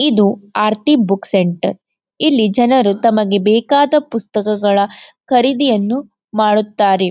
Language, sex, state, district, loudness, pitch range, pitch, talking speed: Kannada, female, Karnataka, Dakshina Kannada, -14 LUFS, 205-255 Hz, 215 Hz, 95 wpm